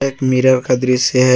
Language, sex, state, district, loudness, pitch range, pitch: Hindi, male, Jharkhand, Garhwa, -14 LUFS, 125-130 Hz, 130 Hz